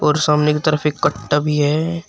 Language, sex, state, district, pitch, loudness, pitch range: Hindi, male, Uttar Pradesh, Shamli, 150 Hz, -17 LUFS, 150-155 Hz